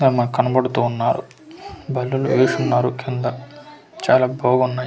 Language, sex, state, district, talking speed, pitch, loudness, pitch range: Telugu, male, Andhra Pradesh, Manyam, 100 wpm, 130 Hz, -19 LUFS, 125-135 Hz